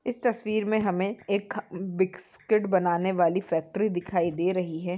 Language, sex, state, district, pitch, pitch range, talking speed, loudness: Hindi, male, Bihar, Samastipur, 190 Hz, 175-215 Hz, 120 wpm, -27 LUFS